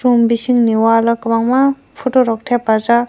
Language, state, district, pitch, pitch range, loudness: Kokborok, Tripura, Dhalai, 235 Hz, 230-250 Hz, -14 LUFS